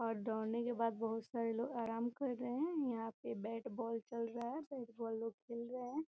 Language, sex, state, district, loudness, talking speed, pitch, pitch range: Hindi, female, Bihar, Gopalganj, -42 LUFS, 235 wpm, 235 Hz, 230-245 Hz